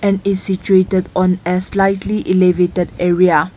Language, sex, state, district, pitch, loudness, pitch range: English, female, Nagaland, Kohima, 185 Hz, -15 LUFS, 180-195 Hz